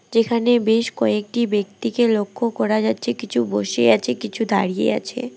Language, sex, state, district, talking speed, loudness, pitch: Bengali, female, West Bengal, Alipurduar, 145 wpm, -20 LUFS, 215 Hz